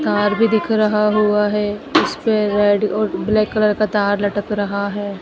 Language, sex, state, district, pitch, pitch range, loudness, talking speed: Hindi, female, Madhya Pradesh, Dhar, 210 Hz, 205-215 Hz, -17 LUFS, 195 wpm